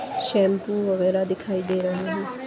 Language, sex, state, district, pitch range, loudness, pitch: Hindi, female, Chhattisgarh, Bastar, 185-205 Hz, -24 LUFS, 190 Hz